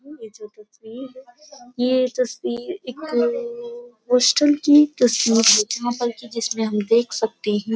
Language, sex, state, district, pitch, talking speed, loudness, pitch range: Hindi, female, Uttar Pradesh, Jyotiba Phule Nagar, 245 Hz, 115 wpm, -19 LUFS, 225-265 Hz